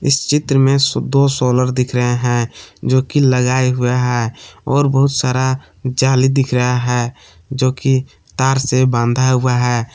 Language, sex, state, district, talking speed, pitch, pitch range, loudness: Hindi, male, Jharkhand, Palamu, 155 wpm, 130 Hz, 125-135 Hz, -15 LUFS